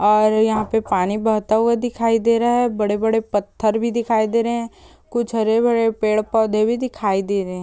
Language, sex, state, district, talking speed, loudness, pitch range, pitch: Hindi, female, Chhattisgarh, Bilaspur, 220 wpm, -19 LUFS, 215-230 Hz, 220 Hz